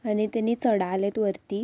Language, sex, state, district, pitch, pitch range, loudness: Marathi, female, Karnataka, Belgaum, 210 Hz, 200-225 Hz, -26 LUFS